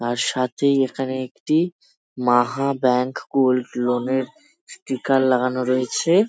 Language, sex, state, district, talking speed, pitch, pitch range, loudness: Bengali, male, West Bengal, Jalpaiguri, 115 wpm, 130 Hz, 125-140 Hz, -21 LUFS